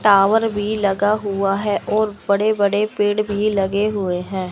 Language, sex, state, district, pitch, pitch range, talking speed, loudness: Hindi, male, Chandigarh, Chandigarh, 205 Hz, 195-215 Hz, 175 wpm, -19 LUFS